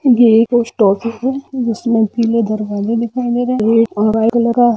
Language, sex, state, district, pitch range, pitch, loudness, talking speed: Hindi, female, Jharkhand, Jamtara, 220-240 Hz, 230 Hz, -14 LUFS, 175 wpm